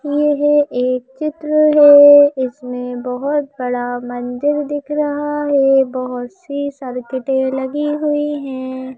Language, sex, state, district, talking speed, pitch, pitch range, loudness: Hindi, female, Madhya Pradesh, Bhopal, 115 wpm, 280 Hz, 255-295 Hz, -16 LUFS